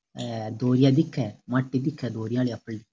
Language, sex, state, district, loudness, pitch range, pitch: Rajasthani, male, Rajasthan, Nagaur, -26 LUFS, 115-130 Hz, 125 Hz